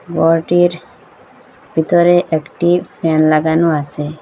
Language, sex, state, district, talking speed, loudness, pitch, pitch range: Bengali, female, Assam, Hailakandi, 85 wpm, -14 LUFS, 165 Hz, 155-175 Hz